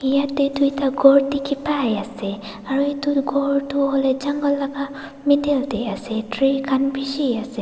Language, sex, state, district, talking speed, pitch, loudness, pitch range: Nagamese, female, Nagaland, Dimapur, 135 wpm, 275 Hz, -20 LUFS, 265-280 Hz